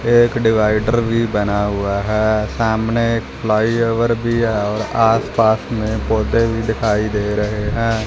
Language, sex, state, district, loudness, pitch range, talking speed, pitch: Hindi, male, Punjab, Fazilka, -17 LUFS, 105-115 Hz, 165 wpm, 110 Hz